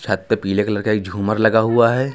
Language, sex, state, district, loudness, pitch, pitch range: Hindi, male, Uttar Pradesh, Lucknow, -18 LUFS, 110 Hz, 100-115 Hz